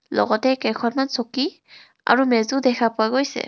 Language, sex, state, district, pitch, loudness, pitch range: Assamese, female, Assam, Kamrup Metropolitan, 255 Hz, -21 LUFS, 235-270 Hz